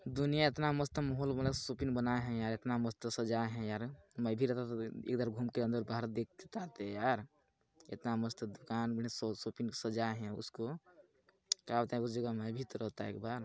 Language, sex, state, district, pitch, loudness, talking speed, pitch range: Hindi, male, Chhattisgarh, Balrampur, 115 Hz, -38 LUFS, 195 wpm, 115-130 Hz